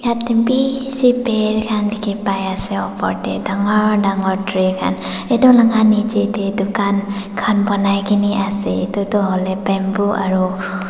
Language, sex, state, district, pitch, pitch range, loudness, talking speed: Nagamese, female, Nagaland, Dimapur, 205 Hz, 195-215 Hz, -17 LUFS, 150 wpm